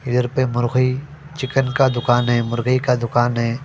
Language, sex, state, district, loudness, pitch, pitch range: Hindi, male, Delhi, New Delhi, -19 LUFS, 125 Hz, 120-130 Hz